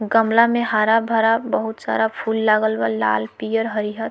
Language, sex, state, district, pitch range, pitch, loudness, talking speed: Bhojpuri, female, Bihar, Muzaffarpur, 215-225 Hz, 220 Hz, -19 LUFS, 160 wpm